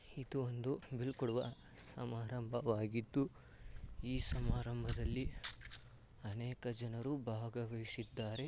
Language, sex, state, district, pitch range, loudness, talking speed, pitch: Kannada, male, Karnataka, Dharwad, 115-130 Hz, -42 LUFS, 70 wpm, 120 Hz